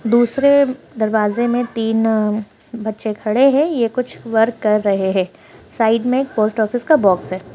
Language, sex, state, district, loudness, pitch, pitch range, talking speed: Hindi, female, Maharashtra, Pune, -17 LUFS, 225 Hz, 215-245 Hz, 160 wpm